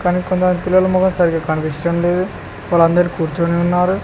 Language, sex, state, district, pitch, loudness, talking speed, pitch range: Telugu, male, Telangana, Mahabubabad, 175 Hz, -16 LUFS, 135 wpm, 170-185 Hz